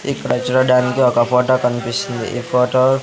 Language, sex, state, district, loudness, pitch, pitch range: Telugu, male, Andhra Pradesh, Sri Satya Sai, -16 LUFS, 125 Hz, 120-130 Hz